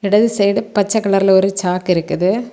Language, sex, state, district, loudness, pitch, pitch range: Tamil, female, Tamil Nadu, Kanyakumari, -15 LUFS, 195 Hz, 190-210 Hz